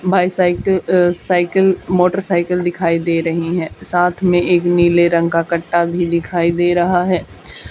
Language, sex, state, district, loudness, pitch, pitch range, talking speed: Hindi, female, Haryana, Charkhi Dadri, -15 LUFS, 175 Hz, 170-180 Hz, 165 wpm